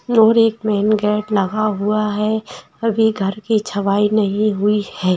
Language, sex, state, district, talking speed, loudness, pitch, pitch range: Hindi, female, Bihar, Saran, 160 wpm, -17 LUFS, 210 Hz, 205-220 Hz